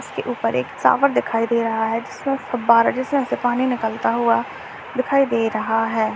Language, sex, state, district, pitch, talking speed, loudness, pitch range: Hindi, male, Rajasthan, Churu, 235 Hz, 195 wpm, -20 LUFS, 225-260 Hz